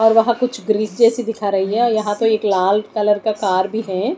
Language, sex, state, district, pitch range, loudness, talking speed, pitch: Hindi, female, Odisha, Nuapada, 205-225 Hz, -17 LUFS, 245 wpm, 215 Hz